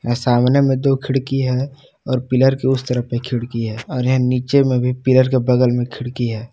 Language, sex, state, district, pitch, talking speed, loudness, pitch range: Hindi, male, Jharkhand, Palamu, 125 Hz, 220 wpm, -17 LUFS, 125-135 Hz